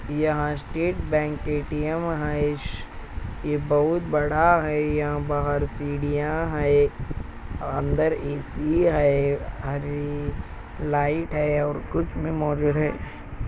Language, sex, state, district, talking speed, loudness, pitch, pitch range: Hindi, male, Andhra Pradesh, Anantapur, 110 wpm, -25 LUFS, 150 Hz, 145-150 Hz